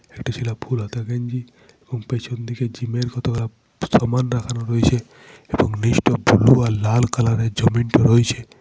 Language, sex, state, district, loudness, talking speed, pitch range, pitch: Bengali, male, West Bengal, Purulia, -20 LUFS, 160 wpm, 115-125 Hz, 120 Hz